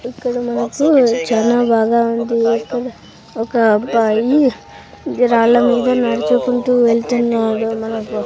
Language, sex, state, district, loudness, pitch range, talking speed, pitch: Telugu, female, Andhra Pradesh, Sri Satya Sai, -15 LUFS, 225-245 Hz, 85 wpm, 235 Hz